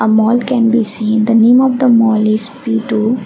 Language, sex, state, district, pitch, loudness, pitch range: English, female, Assam, Kamrup Metropolitan, 225 Hz, -12 LUFS, 220-240 Hz